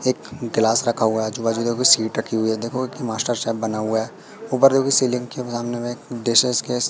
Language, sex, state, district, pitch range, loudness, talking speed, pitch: Hindi, male, Madhya Pradesh, Katni, 110-125 Hz, -20 LUFS, 245 wpm, 120 Hz